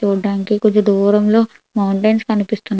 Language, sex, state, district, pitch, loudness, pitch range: Telugu, female, Andhra Pradesh, Visakhapatnam, 210 Hz, -15 LUFS, 200-215 Hz